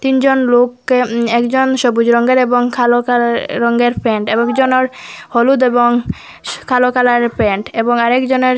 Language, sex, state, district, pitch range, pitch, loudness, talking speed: Bengali, female, Assam, Hailakandi, 235-255 Hz, 245 Hz, -13 LUFS, 145 wpm